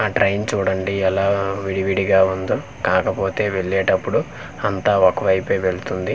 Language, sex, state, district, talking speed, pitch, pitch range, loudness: Telugu, male, Andhra Pradesh, Manyam, 105 wpm, 95 Hz, 95-100 Hz, -19 LUFS